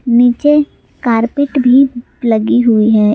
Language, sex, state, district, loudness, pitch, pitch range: Hindi, female, Jharkhand, Palamu, -12 LUFS, 240 Hz, 225-270 Hz